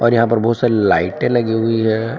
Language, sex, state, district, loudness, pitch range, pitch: Hindi, male, Jharkhand, Palamu, -16 LUFS, 110-115 Hz, 115 Hz